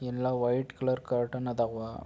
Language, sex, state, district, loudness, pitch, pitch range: Kannada, male, Karnataka, Belgaum, -31 LUFS, 125 Hz, 120-130 Hz